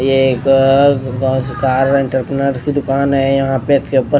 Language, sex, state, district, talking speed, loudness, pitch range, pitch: Hindi, male, Odisha, Nuapada, 145 wpm, -14 LUFS, 130-140 Hz, 135 Hz